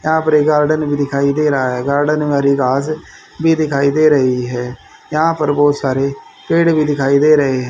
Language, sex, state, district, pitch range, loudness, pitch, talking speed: Hindi, male, Haryana, Rohtak, 135-155 Hz, -15 LUFS, 145 Hz, 220 wpm